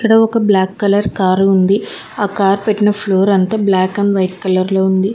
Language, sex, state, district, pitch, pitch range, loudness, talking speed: Telugu, female, Telangana, Hyderabad, 195 Hz, 190-205 Hz, -14 LUFS, 185 wpm